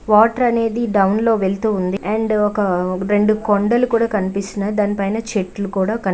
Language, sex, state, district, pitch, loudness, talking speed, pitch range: Telugu, female, Andhra Pradesh, Visakhapatnam, 210 Hz, -18 LUFS, 155 wpm, 195-220 Hz